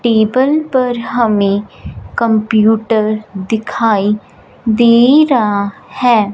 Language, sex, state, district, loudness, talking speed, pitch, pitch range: Hindi, female, Punjab, Fazilka, -13 LUFS, 75 wpm, 220 Hz, 210-240 Hz